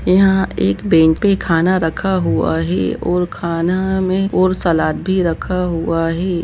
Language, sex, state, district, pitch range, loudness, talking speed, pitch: Hindi, male, Jharkhand, Jamtara, 165-185 Hz, -16 LUFS, 160 wpm, 175 Hz